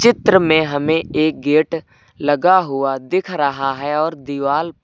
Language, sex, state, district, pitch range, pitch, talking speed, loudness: Hindi, male, Uttar Pradesh, Lucknow, 140-165 Hz, 155 Hz, 160 wpm, -17 LUFS